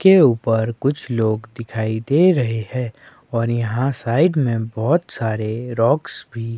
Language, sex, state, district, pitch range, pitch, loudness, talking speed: Hindi, male, Himachal Pradesh, Shimla, 115-135 Hz, 115 Hz, -19 LUFS, 145 wpm